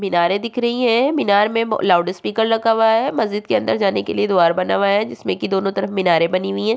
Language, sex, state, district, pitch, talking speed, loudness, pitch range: Hindi, female, Uttarakhand, Tehri Garhwal, 205 Hz, 265 wpm, -18 LUFS, 190-225 Hz